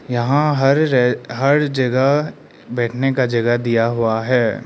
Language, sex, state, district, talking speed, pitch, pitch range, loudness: Hindi, male, Arunachal Pradesh, Lower Dibang Valley, 115 wpm, 125 Hz, 120-140 Hz, -17 LUFS